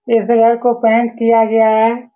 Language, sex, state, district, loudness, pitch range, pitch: Hindi, male, Bihar, Saran, -12 LUFS, 225-235 Hz, 230 Hz